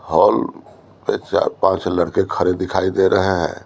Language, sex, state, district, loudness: Hindi, male, Bihar, Patna, -18 LUFS